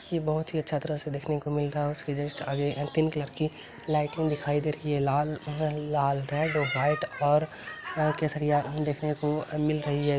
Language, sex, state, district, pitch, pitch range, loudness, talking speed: Maithili, male, Bihar, Araria, 150 Hz, 145-155 Hz, -29 LUFS, 185 wpm